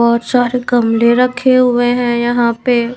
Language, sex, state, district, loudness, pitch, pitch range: Hindi, female, Maharashtra, Mumbai Suburban, -13 LUFS, 245 Hz, 235-250 Hz